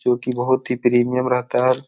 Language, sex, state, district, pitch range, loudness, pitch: Hindi, male, Bihar, Jahanabad, 125-130 Hz, -19 LUFS, 125 Hz